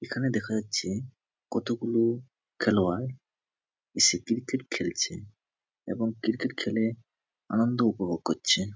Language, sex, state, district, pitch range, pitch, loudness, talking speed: Bengali, male, West Bengal, Jhargram, 105-120 Hz, 115 Hz, -28 LUFS, 95 wpm